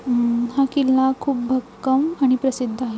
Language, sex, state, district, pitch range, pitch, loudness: Marathi, female, Maharashtra, Pune, 245-265 Hz, 260 Hz, -20 LUFS